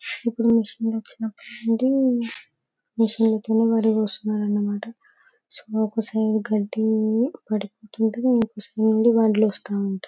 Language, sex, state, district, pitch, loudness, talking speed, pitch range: Telugu, female, Telangana, Karimnagar, 220 Hz, -23 LUFS, 60 wpm, 215-230 Hz